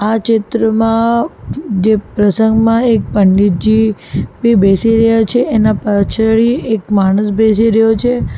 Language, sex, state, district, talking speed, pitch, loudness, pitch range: Gujarati, female, Gujarat, Valsad, 130 wpm, 220 Hz, -12 LUFS, 210-225 Hz